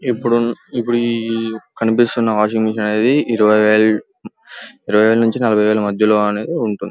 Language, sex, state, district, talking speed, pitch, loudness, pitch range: Telugu, male, Andhra Pradesh, Guntur, 115 wpm, 110 Hz, -16 LUFS, 105-120 Hz